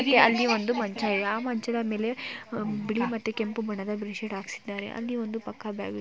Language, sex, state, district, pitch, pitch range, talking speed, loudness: Kannada, female, Karnataka, Mysore, 220 Hz, 210-235 Hz, 160 wpm, -29 LUFS